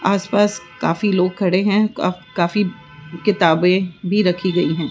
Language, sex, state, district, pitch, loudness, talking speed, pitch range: Hindi, female, Rajasthan, Jaipur, 185 Hz, -18 LUFS, 145 wpm, 170-200 Hz